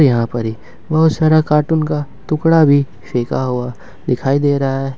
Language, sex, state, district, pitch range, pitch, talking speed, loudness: Hindi, male, Jharkhand, Ranchi, 125-155 Hz, 140 Hz, 195 wpm, -16 LUFS